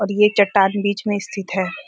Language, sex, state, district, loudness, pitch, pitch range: Hindi, female, Uttarakhand, Uttarkashi, -18 LUFS, 200 Hz, 195-205 Hz